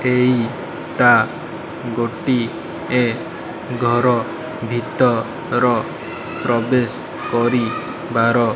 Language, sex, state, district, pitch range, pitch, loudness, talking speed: Odia, male, Odisha, Malkangiri, 115-125 Hz, 120 Hz, -19 LUFS, 55 wpm